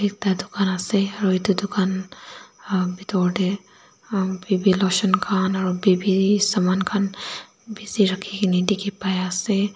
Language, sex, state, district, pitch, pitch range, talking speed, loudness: Nagamese, female, Nagaland, Dimapur, 195 Hz, 185-200 Hz, 125 wpm, -22 LUFS